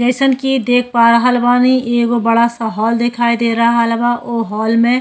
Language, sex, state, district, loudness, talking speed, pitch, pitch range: Bhojpuri, female, Uttar Pradesh, Ghazipur, -13 LUFS, 215 wpm, 235 Hz, 230-245 Hz